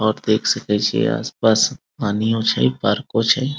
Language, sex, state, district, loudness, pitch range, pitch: Maithili, male, Bihar, Muzaffarpur, -19 LUFS, 105-125 Hz, 110 Hz